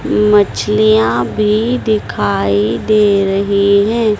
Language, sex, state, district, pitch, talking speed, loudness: Hindi, female, Madhya Pradesh, Dhar, 200 Hz, 85 wpm, -13 LUFS